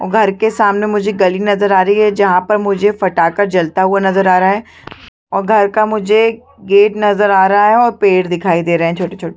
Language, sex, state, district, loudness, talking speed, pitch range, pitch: Hindi, female, Chhattisgarh, Bastar, -12 LUFS, 245 wpm, 185-210 Hz, 200 Hz